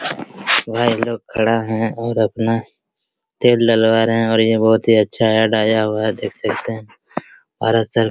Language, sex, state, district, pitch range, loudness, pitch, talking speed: Hindi, male, Bihar, Araria, 110-115 Hz, -17 LUFS, 115 Hz, 170 wpm